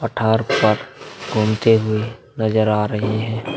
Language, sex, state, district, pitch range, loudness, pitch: Hindi, male, Bihar, Vaishali, 110-115 Hz, -19 LUFS, 110 Hz